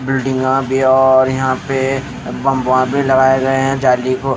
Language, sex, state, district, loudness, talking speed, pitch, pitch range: Hindi, male, Haryana, Jhajjar, -14 LUFS, 165 wpm, 130 Hz, 130-135 Hz